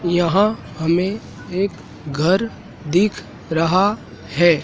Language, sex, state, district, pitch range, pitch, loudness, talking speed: Hindi, male, Madhya Pradesh, Dhar, 155-190 Hz, 175 Hz, -19 LUFS, 90 wpm